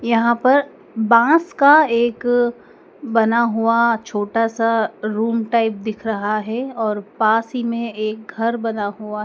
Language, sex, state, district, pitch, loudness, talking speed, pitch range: Hindi, female, Madhya Pradesh, Dhar, 230 Hz, -18 LUFS, 145 wpm, 220-235 Hz